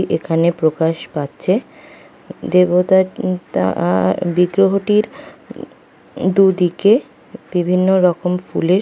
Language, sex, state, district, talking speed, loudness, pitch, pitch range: Bengali, female, West Bengal, Kolkata, 95 wpm, -16 LUFS, 180 Hz, 170-190 Hz